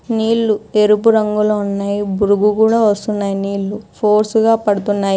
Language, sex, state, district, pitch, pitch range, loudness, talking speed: Telugu, female, Telangana, Hyderabad, 210 Hz, 205-220 Hz, -15 LUFS, 115 wpm